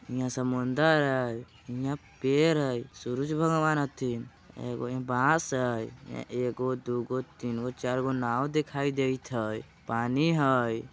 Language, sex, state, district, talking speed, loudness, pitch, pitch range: Bajjika, male, Bihar, Vaishali, 125 wpm, -29 LUFS, 130 Hz, 120-140 Hz